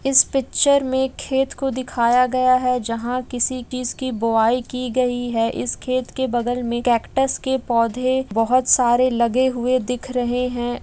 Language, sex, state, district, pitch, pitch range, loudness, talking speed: Hindi, female, Bihar, Jamui, 250 Hz, 240-260 Hz, -20 LUFS, 170 wpm